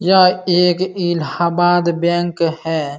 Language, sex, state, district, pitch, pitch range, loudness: Hindi, male, Uttar Pradesh, Jalaun, 175 Hz, 170-180 Hz, -16 LUFS